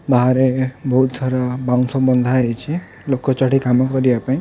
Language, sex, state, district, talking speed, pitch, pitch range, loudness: Odia, male, Odisha, Khordha, 135 wpm, 130 Hz, 125-130 Hz, -17 LUFS